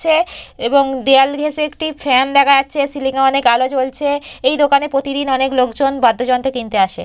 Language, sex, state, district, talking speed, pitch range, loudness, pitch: Bengali, female, West Bengal, Purulia, 170 wpm, 260-285 Hz, -15 LUFS, 270 Hz